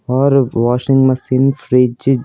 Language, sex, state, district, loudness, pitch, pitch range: Hindi, male, Bihar, Patna, -13 LUFS, 130 Hz, 125-135 Hz